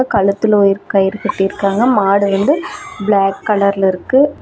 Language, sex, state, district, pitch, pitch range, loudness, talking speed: Tamil, female, Tamil Nadu, Namakkal, 200 Hz, 195-215 Hz, -14 LUFS, 120 wpm